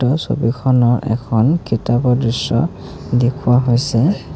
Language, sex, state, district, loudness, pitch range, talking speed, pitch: Assamese, male, Assam, Kamrup Metropolitan, -16 LUFS, 120-130 Hz, 95 wpm, 125 Hz